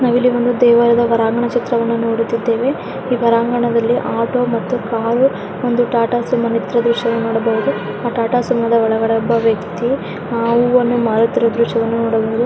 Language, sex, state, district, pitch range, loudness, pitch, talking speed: Kannada, female, Karnataka, Dharwad, 230-240 Hz, -16 LUFS, 235 Hz, 140 wpm